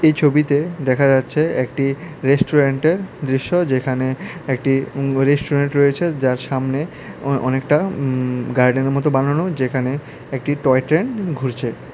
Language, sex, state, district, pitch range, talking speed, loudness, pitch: Bengali, male, Tripura, West Tripura, 130-150 Hz, 130 wpm, -18 LUFS, 140 Hz